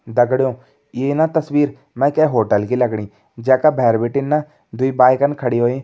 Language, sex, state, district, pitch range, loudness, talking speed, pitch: Kumaoni, male, Uttarakhand, Tehri Garhwal, 120-145 Hz, -17 LUFS, 185 wpm, 130 Hz